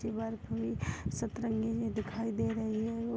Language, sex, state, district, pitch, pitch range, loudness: Hindi, female, Uttar Pradesh, Gorakhpur, 225 Hz, 215-225 Hz, -36 LUFS